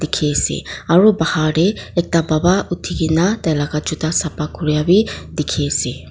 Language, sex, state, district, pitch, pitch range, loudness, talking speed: Nagamese, female, Nagaland, Kohima, 160 Hz, 155-175 Hz, -17 LUFS, 165 wpm